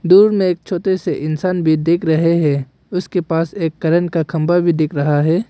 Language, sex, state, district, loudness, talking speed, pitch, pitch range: Hindi, male, Arunachal Pradesh, Papum Pare, -16 LUFS, 220 wpm, 170 Hz, 155-180 Hz